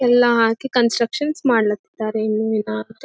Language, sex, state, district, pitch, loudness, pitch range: Kannada, female, Karnataka, Gulbarga, 230 Hz, -19 LUFS, 220-245 Hz